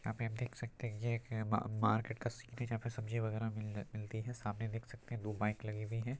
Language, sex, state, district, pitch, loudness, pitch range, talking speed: Hindi, male, Bihar, Purnia, 115 Hz, -41 LUFS, 110-120 Hz, 220 wpm